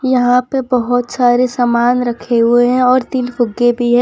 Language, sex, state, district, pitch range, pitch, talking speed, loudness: Hindi, female, Gujarat, Valsad, 240-250 Hz, 245 Hz, 195 wpm, -13 LUFS